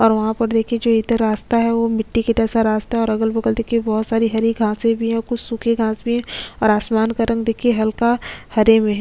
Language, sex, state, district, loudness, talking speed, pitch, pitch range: Hindi, female, Chhattisgarh, Sukma, -18 LUFS, 245 wpm, 225 Hz, 220-230 Hz